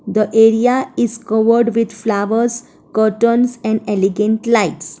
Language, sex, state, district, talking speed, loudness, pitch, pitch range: English, female, Gujarat, Valsad, 120 wpm, -15 LUFS, 225 Hz, 215-235 Hz